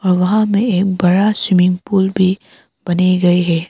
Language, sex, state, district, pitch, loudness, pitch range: Hindi, female, Arunachal Pradesh, Papum Pare, 185 Hz, -14 LUFS, 180-195 Hz